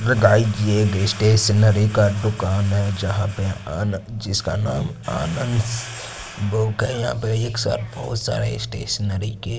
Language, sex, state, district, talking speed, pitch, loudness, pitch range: Hindi, male, Chandigarh, Chandigarh, 130 wpm, 105 Hz, -21 LUFS, 100-115 Hz